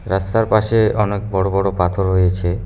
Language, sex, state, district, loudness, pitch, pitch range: Bengali, male, West Bengal, Cooch Behar, -17 LUFS, 95 Hz, 95-105 Hz